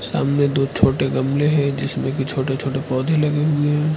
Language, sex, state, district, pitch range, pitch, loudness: Hindi, male, Arunachal Pradesh, Lower Dibang Valley, 135-150 Hz, 140 Hz, -19 LUFS